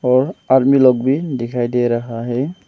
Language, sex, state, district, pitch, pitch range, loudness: Hindi, male, Arunachal Pradesh, Longding, 130 Hz, 120-135 Hz, -16 LUFS